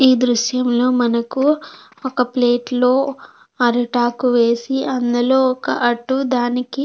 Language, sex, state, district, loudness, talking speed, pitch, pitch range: Telugu, female, Andhra Pradesh, Krishna, -17 LUFS, 105 wpm, 250 Hz, 240-260 Hz